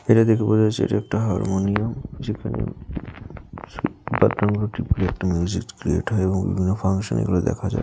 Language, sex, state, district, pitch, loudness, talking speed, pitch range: Bengali, male, West Bengal, Jalpaiguri, 105 Hz, -22 LUFS, 140 wpm, 95-110 Hz